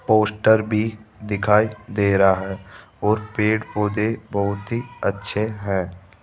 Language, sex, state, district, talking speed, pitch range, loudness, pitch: Hindi, male, Rajasthan, Jaipur, 125 wpm, 100-110 Hz, -21 LUFS, 105 Hz